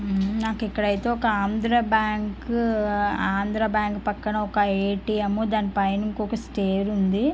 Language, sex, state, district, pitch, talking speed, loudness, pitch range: Telugu, female, Andhra Pradesh, Guntur, 210 Hz, 140 wpm, -24 LUFS, 200-220 Hz